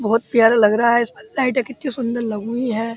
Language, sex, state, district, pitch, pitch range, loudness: Hindi, male, Uttar Pradesh, Muzaffarnagar, 235 Hz, 225-250 Hz, -18 LUFS